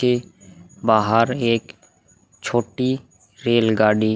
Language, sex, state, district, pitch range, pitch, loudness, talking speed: Hindi, male, Bihar, Vaishali, 105-120 Hz, 115 Hz, -20 LUFS, 85 wpm